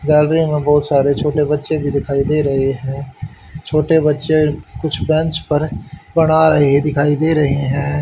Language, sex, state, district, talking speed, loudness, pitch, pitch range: Hindi, male, Haryana, Rohtak, 165 wpm, -15 LUFS, 150 Hz, 140-155 Hz